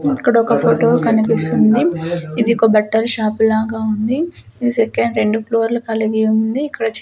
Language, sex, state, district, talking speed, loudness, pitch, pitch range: Telugu, female, Andhra Pradesh, Sri Satya Sai, 145 wpm, -16 LUFS, 225 Hz, 220-230 Hz